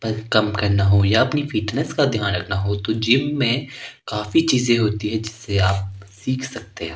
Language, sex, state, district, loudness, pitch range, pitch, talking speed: Hindi, male, Himachal Pradesh, Shimla, -20 LUFS, 100-130 Hz, 110 Hz, 190 wpm